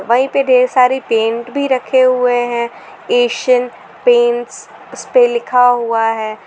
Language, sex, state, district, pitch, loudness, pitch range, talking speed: Hindi, female, Jharkhand, Garhwa, 250 Hz, -14 LUFS, 235-280 Hz, 140 wpm